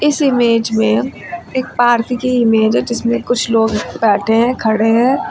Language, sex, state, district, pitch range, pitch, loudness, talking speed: Hindi, female, Uttar Pradesh, Lucknow, 225-250 Hz, 235 Hz, -14 LUFS, 170 wpm